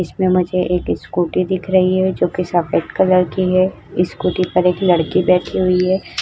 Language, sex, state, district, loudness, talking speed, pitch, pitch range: Hindi, female, Uttar Pradesh, Budaun, -16 LUFS, 185 wpm, 185 Hz, 180-185 Hz